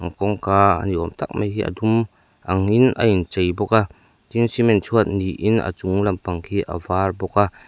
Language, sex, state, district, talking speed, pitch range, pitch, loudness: Mizo, male, Mizoram, Aizawl, 205 wpm, 90-110 Hz, 100 Hz, -20 LUFS